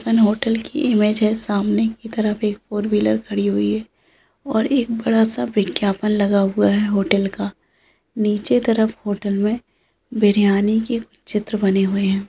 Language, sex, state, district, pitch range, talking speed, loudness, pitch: Hindi, female, Andhra Pradesh, Anantapur, 200-225 Hz, 150 wpm, -19 LUFS, 210 Hz